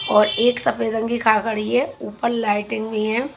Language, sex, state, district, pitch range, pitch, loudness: Hindi, female, Chhattisgarh, Raipur, 215-240 Hz, 225 Hz, -20 LUFS